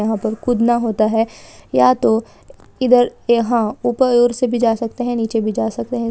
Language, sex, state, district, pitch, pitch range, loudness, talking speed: Hindi, female, Chhattisgarh, Balrampur, 230 Hz, 220-240 Hz, -17 LUFS, 195 wpm